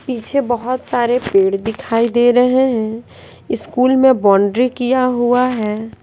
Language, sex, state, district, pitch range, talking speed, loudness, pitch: Hindi, female, Bihar, West Champaran, 225-255 Hz, 140 wpm, -15 LUFS, 245 Hz